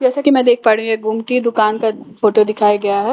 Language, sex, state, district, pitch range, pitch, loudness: Hindi, female, Bihar, Katihar, 215-245 Hz, 220 Hz, -15 LUFS